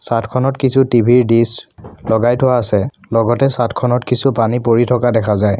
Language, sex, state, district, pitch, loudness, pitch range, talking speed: Assamese, male, Assam, Kamrup Metropolitan, 120 Hz, -14 LUFS, 115-125 Hz, 170 wpm